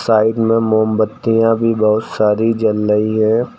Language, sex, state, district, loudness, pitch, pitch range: Hindi, male, Uttar Pradesh, Lucknow, -15 LUFS, 110 Hz, 110-115 Hz